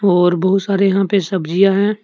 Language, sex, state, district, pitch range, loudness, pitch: Hindi, male, Jharkhand, Deoghar, 185-200 Hz, -15 LUFS, 195 Hz